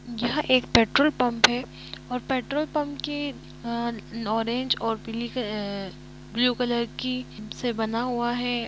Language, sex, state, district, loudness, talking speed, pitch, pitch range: Hindi, female, Jharkhand, Jamtara, -26 LUFS, 130 wpm, 240 Hz, 230-255 Hz